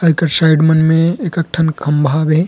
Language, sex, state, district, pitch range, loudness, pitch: Chhattisgarhi, male, Chhattisgarh, Rajnandgaon, 155-165 Hz, -13 LUFS, 160 Hz